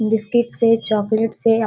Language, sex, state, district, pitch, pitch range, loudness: Hindi, female, Bihar, Darbhanga, 225 Hz, 220-230 Hz, -17 LUFS